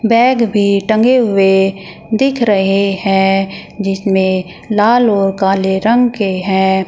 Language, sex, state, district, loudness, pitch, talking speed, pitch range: Hindi, female, Uttar Pradesh, Shamli, -13 LUFS, 195 Hz, 120 wpm, 195-220 Hz